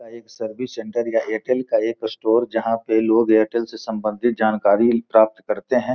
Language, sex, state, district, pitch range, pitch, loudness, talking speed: Hindi, male, Bihar, Gopalganj, 110-115 Hz, 115 Hz, -20 LUFS, 180 wpm